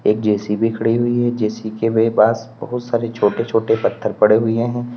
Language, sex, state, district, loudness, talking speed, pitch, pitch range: Hindi, male, Uttar Pradesh, Lalitpur, -18 LUFS, 195 wpm, 115 Hz, 110-115 Hz